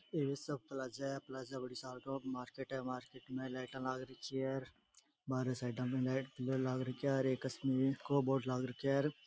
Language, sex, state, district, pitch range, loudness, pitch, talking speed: Rajasthani, male, Rajasthan, Churu, 130-135 Hz, -40 LUFS, 130 Hz, 140 wpm